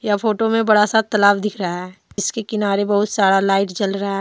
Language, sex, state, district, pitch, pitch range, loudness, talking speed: Hindi, female, Jharkhand, Deoghar, 205 Hz, 195-215 Hz, -18 LUFS, 215 wpm